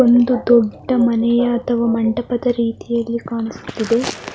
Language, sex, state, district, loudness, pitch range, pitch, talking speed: Kannada, male, Karnataka, Mysore, -18 LUFS, 230-240 Hz, 235 Hz, 110 wpm